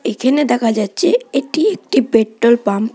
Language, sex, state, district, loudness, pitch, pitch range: Bengali, female, West Bengal, Jhargram, -15 LUFS, 240 Hz, 220-295 Hz